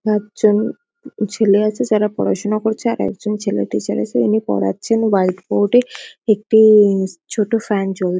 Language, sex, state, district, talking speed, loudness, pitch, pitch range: Bengali, female, West Bengal, Kolkata, 145 wpm, -17 LUFS, 210 Hz, 190-220 Hz